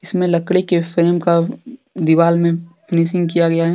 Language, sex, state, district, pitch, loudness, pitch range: Hindi, male, Jharkhand, Deoghar, 170 Hz, -16 LUFS, 170-180 Hz